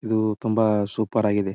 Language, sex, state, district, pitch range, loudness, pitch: Kannada, male, Karnataka, Belgaum, 105-110 Hz, -23 LUFS, 110 Hz